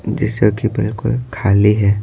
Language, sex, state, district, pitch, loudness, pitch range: Hindi, male, Bihar, Patna, 105 Hz, -16 LUFS, 105-115 Hz